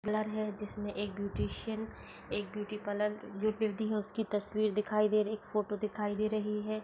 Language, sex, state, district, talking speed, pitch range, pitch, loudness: Hindi, female, Uttar Pradesh, Etah, 185 wpm, 210-215 Hz, 210 Hz, -35 LUFS